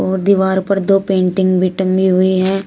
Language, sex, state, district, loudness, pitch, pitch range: Hindi, female, Uttar Pradesh, Shamli, -14 LUFS, 190 Hz, 185-195 Hz